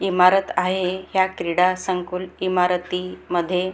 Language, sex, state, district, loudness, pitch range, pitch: Marathi, female, Maharashtra, Gondia, -21 LUFS, 180-185 Hz, 180 Hz